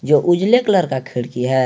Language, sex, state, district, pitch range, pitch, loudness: Hindi, male, Jharkhand, Garhwa, 130-185 Hz, 135 Hz, -16 LUFS